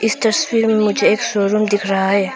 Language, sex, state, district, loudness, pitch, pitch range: Hindi, female, Arunachal Pradesh, Papum Pare, -16 LUFS, 215 Hz, 200-225 Hz